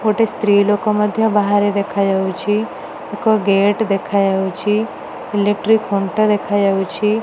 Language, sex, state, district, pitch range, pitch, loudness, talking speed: Odia, female, Odisha, Nuapada, 200-215 Hz, 205 Hz, -16 LUFS, 115 wpm